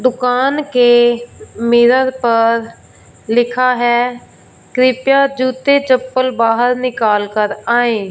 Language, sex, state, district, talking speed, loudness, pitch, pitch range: Hindi, female, Punjab, Fazilka, 95 wpm, -14 LUFS, 245 Hz, 235-255 Hz